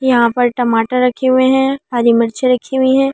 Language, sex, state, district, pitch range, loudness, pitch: Hindi, female, Delhi, New Delhi, 240-265 Hz, -14 LUFS, 250 Hz